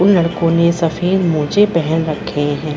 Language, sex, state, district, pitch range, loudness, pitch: Hindi, female, Chhattisgarh, Rajnandgaon, 155-175 Hz, -15 LUFS, 165 Hz